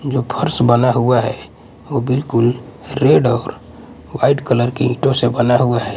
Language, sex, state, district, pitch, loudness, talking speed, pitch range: Hindi, male, Odisha, Malkangiri, 125 Hz, -16 LUFS, 170 wpm, 120-135 Hz